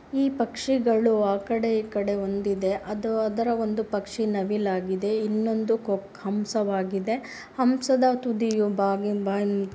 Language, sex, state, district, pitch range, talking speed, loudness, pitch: Kannada, female, Karnataka, Bijapur, 200-230 Hz, 125 wpm, -26 LUFS, 215 Hz